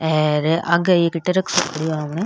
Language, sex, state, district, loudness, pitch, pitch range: Rajasthani, female, Rajasthan, Nagaur, -19 LUFS, 165 Hz, 155-175 Hz